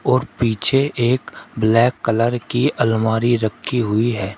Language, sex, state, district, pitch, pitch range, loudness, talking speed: Hindi, male, Uttar Pradesh, Shamli, 120 Hz, 110-125 Hz, -18 LUFS, 135 wpm